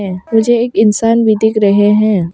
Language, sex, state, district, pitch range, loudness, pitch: Hindi, female, Arunachal Pradesh, Papum Pare, 200-225 Hz, -11 LUFS, 215 Hz